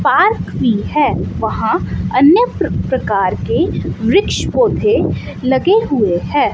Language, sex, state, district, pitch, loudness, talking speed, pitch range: Hindi, female, Chandigarh, Chandigarh, 295 Hz, -15 LUFS, 110 wpm, 260-410 Hz